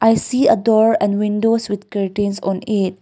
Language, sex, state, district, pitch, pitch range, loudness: English, female, Nagaland, Kohima, 210 Hz, 200-225 Hz, -17 LUFS